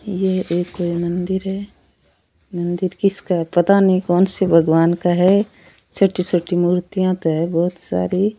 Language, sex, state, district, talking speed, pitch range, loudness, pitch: Rajasthani, female, Rajasthan, Churu, 150 wpm, 170-190 Hz, -18 LUFS, 180 Hz